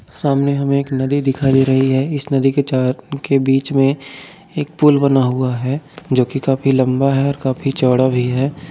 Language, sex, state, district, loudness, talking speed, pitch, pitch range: Hindi, male, Uttar Pradesh, Jyotiba Phule Nagar, -16 LUFS, 200 wpm, 135 Hz, 130-140 Hz